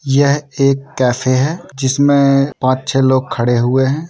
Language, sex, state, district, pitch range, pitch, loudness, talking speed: Hindi, male, Jharkhand, Sahebganj, 130-140 Hz, 135 Hz, -14 LUFS, 145 wpm